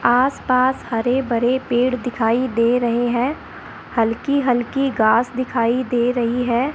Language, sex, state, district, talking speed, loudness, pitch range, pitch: Hindi, female, Rajasthan, Bikaner, 135 wpm, -19 LUFS, 235-255 Hz, 245 Hz